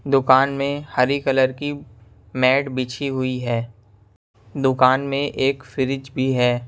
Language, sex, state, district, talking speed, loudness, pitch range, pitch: Hindi, male, Punjab, Kapurthala, 135 wpm, -20 LUFS, 125-135 Hz, 130 Hz